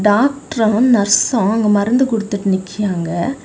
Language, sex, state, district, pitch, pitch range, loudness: Tamil, female, Tamil Nadu, Kanyakumari, 215 Hz, 200-245 Hz, -15 LUFS